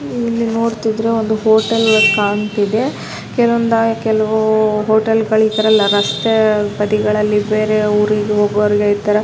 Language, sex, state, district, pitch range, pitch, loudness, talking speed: Kannada, female, Karnataka, Raichur, 210-225 Hz, 215 Hz, -14 LUFS, 105 wpm